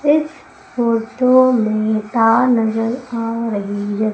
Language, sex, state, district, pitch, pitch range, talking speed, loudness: Hindi, female, Madhya Pradesh, Umaria, 230 Hz, 220-255 Hz, 115 wpm, -16 LUFS